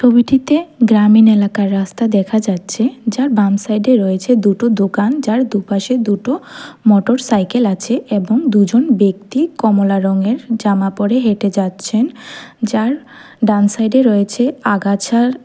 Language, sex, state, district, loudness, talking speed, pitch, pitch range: Bengali, female, Tripura, West Tripura, -14 LUFS, 120 wpm, 220 Hz, 200-250 Hz